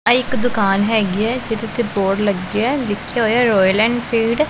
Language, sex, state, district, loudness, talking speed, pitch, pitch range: Punjabi, female, Punjab, Pathankot, -17 LUFS, 200 wpm, 225 Hz, 205-240 Hz